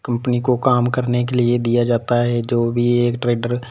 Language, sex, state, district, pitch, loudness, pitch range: Hindi, male, Punjab, Fazilka, 120 Hz, -18 LUFS, 120-125 Hz